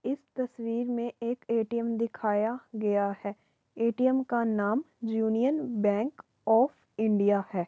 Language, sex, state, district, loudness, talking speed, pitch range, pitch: Hindi, female, Uttar Pradesh, Varanasi, -29 LUFS, 125 wpm, 210-240 Hz, 230 Hz